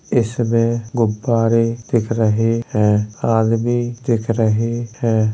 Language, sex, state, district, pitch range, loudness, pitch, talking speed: Hindi, male, Uttar Pradesh, Jalaun, 110-120 Hz, -18 LUFS, 115 Hz, 100 wpm